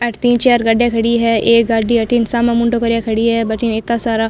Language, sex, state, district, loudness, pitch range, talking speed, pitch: Marwari, female, Rajasthan, Nagaur, -14 LUFS, 225-235 Hz, 250 wpm, 230 Hz